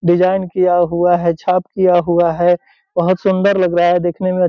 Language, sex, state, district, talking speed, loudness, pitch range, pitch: Hindi, male, Bihar, Purnia, 200 wpm, -15 LUFS, 175-185 Hz, 175 Hz